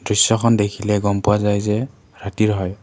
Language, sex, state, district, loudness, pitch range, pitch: Assamese, male, Assam, Kamrup Metropolitan, -18 LUFS, 100-110 Hz, 105 Hz